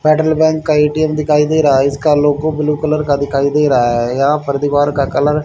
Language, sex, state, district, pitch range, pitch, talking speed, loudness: Hindi, male, Haryana, Charkhi Dadri, 140-155 Hz, 150 Hz, 240 wpm, -13 LUFS